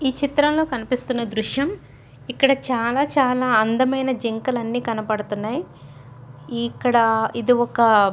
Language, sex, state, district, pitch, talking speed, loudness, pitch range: Telugu, female, Andhra Pradesh, Chittoor, 240 Hz, 105 wpm, -21 LUFS, 220-260 Hz